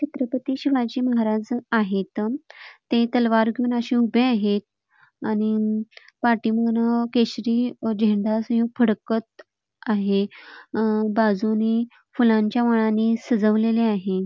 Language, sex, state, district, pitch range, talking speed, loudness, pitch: Marathi, female, Karnataka, Belgaum, 215-240 Hz, 110 wpm, -22 LUFS, 230 Hz